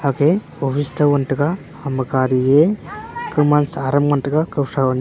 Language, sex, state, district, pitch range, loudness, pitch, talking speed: Wancho, male, Arunachal Pradesh, Longding, 135-150 Hz, -18 LUFS, 145 Hz, 190 wpm